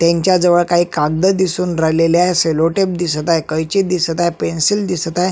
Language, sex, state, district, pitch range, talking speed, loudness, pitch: Marathi, male, Maharashtra, Sindhudurg, 165-180 Hz, 190 wpm, -15 LUFS, 175 Hz